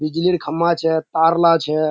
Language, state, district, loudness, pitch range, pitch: Surjapuri, Bihar, Kishanganj, -17 LUFS, 155-170 Hz, 165 Hz